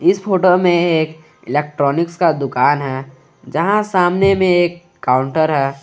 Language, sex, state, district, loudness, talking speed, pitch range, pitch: Hindi, male, Jharkhand, Garhwa, -16 LUFS, 145 wpm, 140-180 Hz, 160 Hz